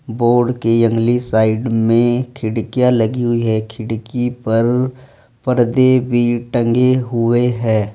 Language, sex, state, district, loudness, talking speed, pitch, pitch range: Hindi, male, Uttar Pradesh, Saharanpur, -16 LUFS, 120 wpm, 120 Hz, 115-125 Hz